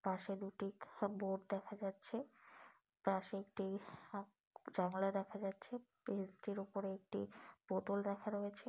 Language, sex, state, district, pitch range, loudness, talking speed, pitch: Bengali, female, West Bengal, Malda, 195-205 Hz, -45 LUFS, 110 wpm, 200 Hz